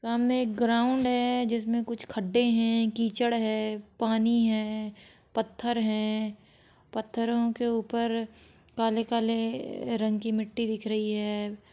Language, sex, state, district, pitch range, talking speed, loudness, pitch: Hindi, female, Jharkhand, Sahebganj, 215-235 Hz, 125 wpm, -28 LUFS, 225 Hz